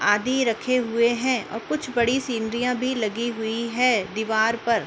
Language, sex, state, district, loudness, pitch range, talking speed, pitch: Hindi, female, Uttar Pradesh, Muzaffarnagar, -23 LUFS, 225-250 Hz, 185 wpm, 235 Hz